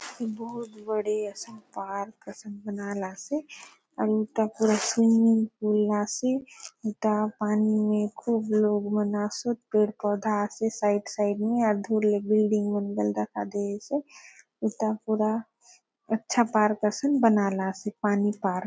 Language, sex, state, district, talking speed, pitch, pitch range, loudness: Halbi, female, Chhattisgarh, Bastar, 135 wpm, 215 Hz, 205-225 Hz, -27 LUFS